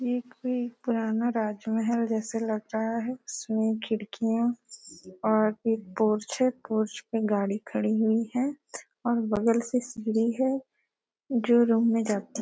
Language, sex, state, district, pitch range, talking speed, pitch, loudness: Hindi, female, Chhattisgarh, Bastar, 220-240 Hz, 145 wpm, 225 Hz, -28 LUFS